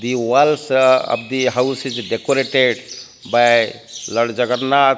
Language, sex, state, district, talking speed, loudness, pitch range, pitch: English, male, Odisha, Malkangiri, 120 wpm, -17 LUFS, 120-135 Hz, 125 Hz